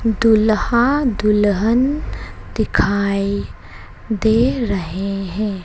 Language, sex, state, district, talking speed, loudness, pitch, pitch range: Hindi, female, Madhya Pradesh, Dhar, 65 wpm, -17 LUFS, 210 Hz, 195-230 Hz